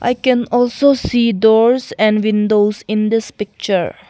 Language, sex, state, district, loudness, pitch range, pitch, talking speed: English, female, Arunachal Pradesh, Longding, -15 LUFS, 215-245 Hz, 225 Hz, 145 wpm